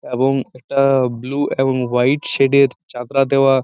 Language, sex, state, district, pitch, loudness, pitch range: Bengali, male, West Bengal, Purulia, 135 Hz, -17 LUFS, 125-135 Hz